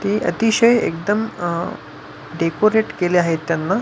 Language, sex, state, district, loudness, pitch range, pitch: Marathi, male, Maharashtra, Pune, -18 LUFS, 165-215 Hz, 175 Hz